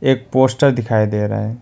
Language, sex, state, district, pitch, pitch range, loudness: Hindi, male, West Bengal, Alipurduar, 120 Hz, 110-135 Hz, -16 LUFS